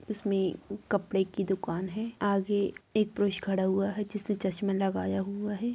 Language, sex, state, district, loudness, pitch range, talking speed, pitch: Hindi, female, Bihar, Sitamarhi, -31 LUFS, 190-210 Hz, 175 wpm, 200 Hz